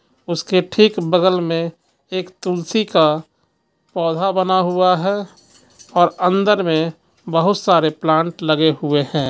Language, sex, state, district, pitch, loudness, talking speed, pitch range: Hindi, male, Jharkhand, Ranchi, 175 Hz, -17 LUFS, 130 wpm, 160-185 Hz